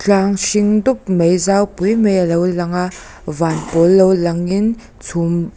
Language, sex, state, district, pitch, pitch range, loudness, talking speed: Mizo, female, Mizoram, Aizawl, 185 Hz, 170-200 Hz, -15 LUFS, 170 wpm